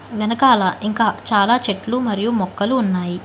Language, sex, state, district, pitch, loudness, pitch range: Telugu, female, Telangana, Hyderabad, 215 Hz, -18 LUFS, 200-240 Hz